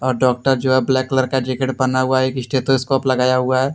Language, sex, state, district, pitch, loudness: Hindi, male, Jharkhand, Deoghar, 130 Hz, -17 LUFS